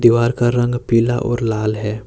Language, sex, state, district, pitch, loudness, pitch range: Hindi, male, Jharkhand, Deoghar, 120 Hz, -17 LUFS, 110-120 Hz